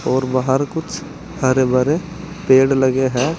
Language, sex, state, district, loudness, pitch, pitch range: Hindi, male, Uttar Pradesh, Saharanpur, -17 LUFS, 135 Hz, 130-160 Hz